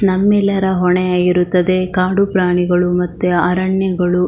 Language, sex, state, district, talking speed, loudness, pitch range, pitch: Kannada, female, Karnataka, Shimoga, 100 wpm, -15 LUFS, 180-190 Hz, 180 Hz